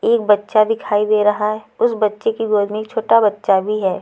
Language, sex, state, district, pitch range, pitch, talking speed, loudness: Hindi, female, Chhattisgarh, Raipur, 210-225 Hz, 215 Hz, 240 wpm, -17 LUFS